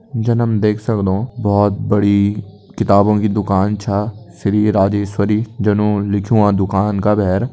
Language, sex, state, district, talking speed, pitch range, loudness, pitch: Kumaoni, male, Uttarakhand, Tehri Garhwal, 145 wpm, 100-105 Hz, -16 LUFS, 105 Hz